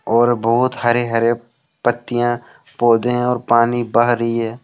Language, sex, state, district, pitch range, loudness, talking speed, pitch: Hindi, male, Jharkhand, Deoghar, 115-120 Hz, -17 LUFS, 140 wpm, 120 Hz